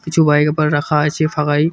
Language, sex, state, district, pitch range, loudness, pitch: Bengali, male, West Bengal, Cooch Behar, 150-155 Hz, -15 LUFS, 150 Hz